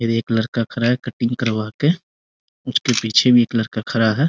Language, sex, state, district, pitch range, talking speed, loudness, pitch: Hindi, male, Bihar, Muzaffarpur, 115-125 Hz, 210 wpm, -19 LUFS, 115 Hz